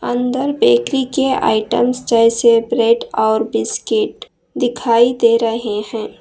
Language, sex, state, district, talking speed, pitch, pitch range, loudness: Hindi, female, Karnataka, Bangalore, 115 wpm, 235 Hz, 230-250 Hz, -15 LUFS